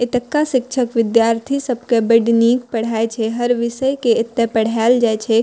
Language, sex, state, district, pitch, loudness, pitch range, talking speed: Maithili, female, Bihar, Purnia, 235 Hz, -17 LUFS, 230-250 Hz, 175 wpm